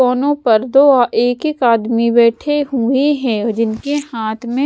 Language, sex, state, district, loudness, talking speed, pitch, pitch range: Hindi, female, Odisha, Sambalpur, -14 LUFS, 155 wpm, 245 Hz, 230-280 Hz